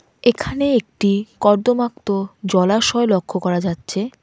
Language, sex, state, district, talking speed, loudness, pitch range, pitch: Bengali, female, West Bengal, Cooch Behar, 100 wpm, -18 LUFS, 190-240 Hz, 205 Hz